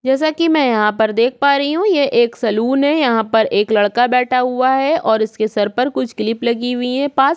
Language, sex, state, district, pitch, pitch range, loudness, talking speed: Hindi, female, Chhattisgarh, Korba, 250 Hz, 225-280 Hz, -15 LUFS, 245 wpm